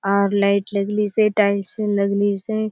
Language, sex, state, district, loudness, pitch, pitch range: Halbi, female, Chhattisgarh, Bastar, -19 LUFS, 200 Hz, 200-210 Hz